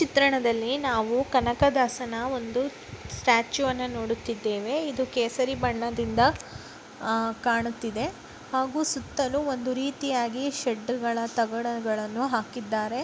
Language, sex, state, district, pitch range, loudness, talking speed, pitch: Kannada, female, Karnataka, Dakshina Kannada, 230-265 Hz, -27 LUFS, 85 wpm, 245 Hz